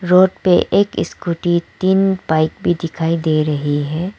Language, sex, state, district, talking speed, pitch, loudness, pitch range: Hindi, female, Arunachal Pradesh, Lower Dibang Valley, 160 wpm, 170 Hz, -17 LUFS, 160-185 Hz